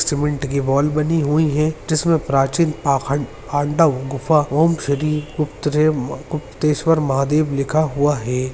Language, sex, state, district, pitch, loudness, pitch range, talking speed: Hindi, male, Uttarakhand, Uttarkashi, 150 Hz, -19 LUFS, 140-155 Hz, 125 wpm